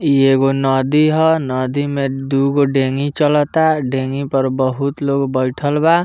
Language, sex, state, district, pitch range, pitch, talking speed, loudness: Bhojpuri, male, Bihar, Muzaffarpur, 135-145 Hz, 140 Hz, 150 wpm, -16 LUFS